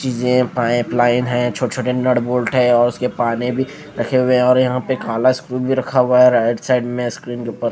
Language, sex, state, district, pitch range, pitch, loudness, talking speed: Hindi, female, Punjab, Fazilka, 120-125 Hz, 125 Hz, -17 LUFS, 235 wpm